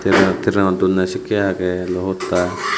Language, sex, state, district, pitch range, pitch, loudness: Chakma, male, Tripura, Unakoti, 90-95 Hz, 95 Hz, -18 LUFS